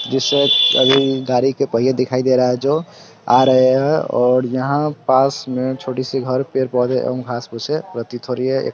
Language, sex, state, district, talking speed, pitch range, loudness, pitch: Hindi, male, Bihar, Sitamarhi, 185 wpm, 125-135 Hz, -17 LUFS, 130 Hz